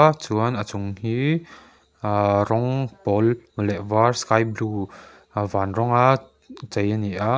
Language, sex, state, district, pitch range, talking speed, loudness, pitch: Mizo, male, Mizoram, Aizawl, 105-125 Hz, 155 wpm, -22 LUFS, 110 Hz